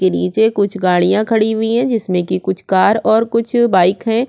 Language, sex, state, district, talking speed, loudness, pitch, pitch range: Hindi, female, Chhattisgarh, Korba, 195 wpm, -14 LUFS, 215 Hz, 185-225 Hz